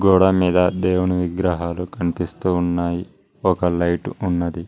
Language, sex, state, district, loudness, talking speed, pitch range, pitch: Telugu, male, Telangana, Mahabubabad, -20 LUFS, 115 wpm, 85-90 Hz, 90 Hz